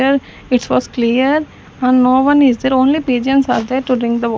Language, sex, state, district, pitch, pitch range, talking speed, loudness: English, female, Chandigarh, Chandigarh, 255 Hz, 245-270 Hz, 220 wpm, -14 LUFS